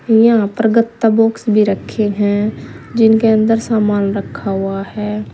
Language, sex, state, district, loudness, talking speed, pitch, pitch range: Hindi, female, Uttar Pradesh, Saharanpur, -14 LUFS, 145 wpm, 215 Hz, 205-225 Hz